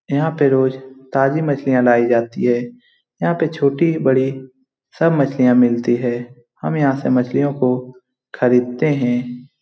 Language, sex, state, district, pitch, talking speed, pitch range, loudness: Hindi, male, Bihar, Lakhisarai, 130 Hz, 145 wpm, 125-140 Hz, -17 LUFS